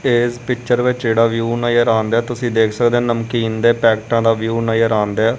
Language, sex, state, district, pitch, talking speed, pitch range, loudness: Punjabi, male, Punjab, Kapurthala, 115 Hz, 210 wpm, 115-120 Hz, -16 LUFS